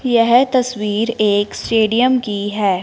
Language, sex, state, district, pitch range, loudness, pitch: Hindi, female, Punjab, Fazilka, 205-245 Hz, -16 LUFS, 225 Hz